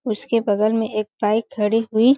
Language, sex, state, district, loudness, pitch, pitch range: Hindi, female, Chhattisgarh, Balrampur, -20 LUFS, 220 Hz, 210-230 Hz